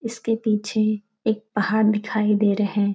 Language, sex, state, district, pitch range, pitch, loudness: Hindi, female, Bihar, Supaul, 210-220 Hz, 215 Hz, -22 LUFS